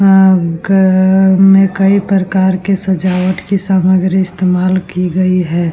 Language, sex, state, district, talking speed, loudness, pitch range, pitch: Hindi, female, Bihar, Vaishali, 145 wpm, -11 LUFS, 185-195 Hz, 190 Hz